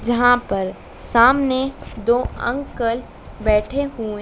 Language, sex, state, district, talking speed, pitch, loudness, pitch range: Hindi, female, Madhya Pradesh, Dhar, 100 wpm, 240 Hz, -19 LUFS, 220-260 Hz